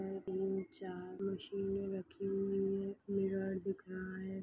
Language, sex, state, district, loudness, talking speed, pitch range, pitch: Hindi, female, Maharashtra, Solapur, -40 LUFS, 135 wpm, 190-195 Hz, 195 Hz